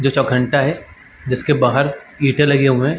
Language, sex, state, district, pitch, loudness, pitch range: Hindi, male, Uttar Pradesh, Varanasi, 140 Hz, -16 LUFS, 130-140 Hz